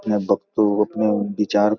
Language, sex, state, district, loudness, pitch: Hindi, male, Bihar, Gopalganj, -20 LUFS, 105 Hz